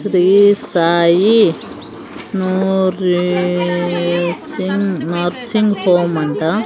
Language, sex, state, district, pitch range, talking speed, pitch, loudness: Telugu, female, Andhra Pradesh, Sri Satya Sai, 175-200 Hz, 65 wpm, 180 Hz, -15 LUFS